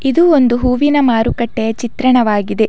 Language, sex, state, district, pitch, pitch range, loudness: Kannada, female, Karnataka, Dakshina Kannada, 245 Hz, 225-265 Hz, -13 LUFS